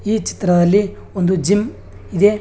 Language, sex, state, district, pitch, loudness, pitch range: Kannada, male, Karnataka, Bangalore, 195 Hz, -16 LUFS, 175-205 Hz